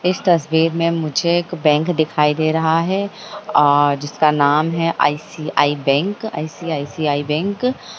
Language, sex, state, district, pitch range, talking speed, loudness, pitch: Hindi, male, Bihar, Jahanabad, 150-175 Hz, 145 wpm, -18 LUFS, 160 Hz